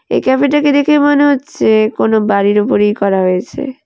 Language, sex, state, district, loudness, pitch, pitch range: Bengali, female, West Bengal, Alipurduar, -12 LUFS, 255 Hz, 210-290 Hz